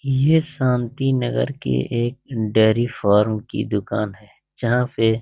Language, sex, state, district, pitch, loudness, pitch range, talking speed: Hindi, male, Bihar, Saran, 115 Hz, -20 LUFS, 105-125 Hz, 150 wpm